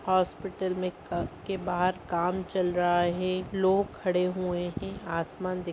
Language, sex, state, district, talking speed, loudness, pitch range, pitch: Hindi, female, Bihar, Gopalganj, 170 wpm, -29 LUFS, 175-185 Hz, 185 Hz